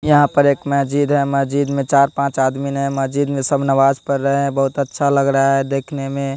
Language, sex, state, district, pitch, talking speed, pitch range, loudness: Hindi, male, Bihar, West Champaran, 140 Hz, 235 wpm, 135-140 Hz, -17 LUFS